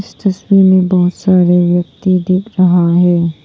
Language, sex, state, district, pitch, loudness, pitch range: Hindi, female, Arunachal Pradesh, Papum Pare, 180 Hz, -11 LUFS, 175-185 Hz